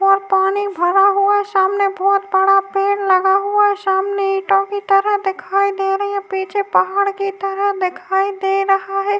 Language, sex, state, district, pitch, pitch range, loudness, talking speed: Hindi, female, Uttar Pradesh, Jyotiba Phule Nagar, 390 Hz, 385-400 Hz, -16 LUFS, 170 wpm